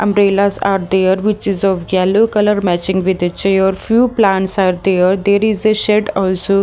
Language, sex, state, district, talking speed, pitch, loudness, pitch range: English, female, Haryana, Jhajjar, 190 wpm, 195 Hz, -14 LUFS, 190-210 Hz